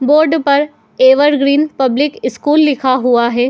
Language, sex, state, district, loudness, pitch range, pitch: Hindi, female, Uttar Pradesh, Muzaffarnagar, -12 LUFS, 260-295 Hz, 280 Hz